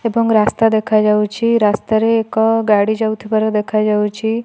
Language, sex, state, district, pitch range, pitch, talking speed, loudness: Odia, female, Odisha, Malkangiri, 210-225 Hz, 220 Hz, 120 wpm, -15 LUFS